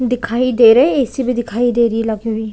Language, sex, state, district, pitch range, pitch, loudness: Hindi, female, Chhattisgarh, Bilaspur, 225-250 Hz, 240 Hz, -14 LUFS